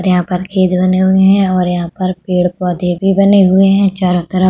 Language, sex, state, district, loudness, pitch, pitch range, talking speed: Hindi, female, Uttar Pradesh, Budaun, -12 LUFS, 185 Hz, 180-190 Hz, 225 wpm